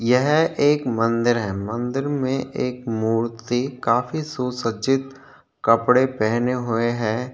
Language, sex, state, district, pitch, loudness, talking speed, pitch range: Hindi, male, Chhattisgarh, Korba, 125 Hz, -21 LUFS, 125 wpm, 115-130 Hz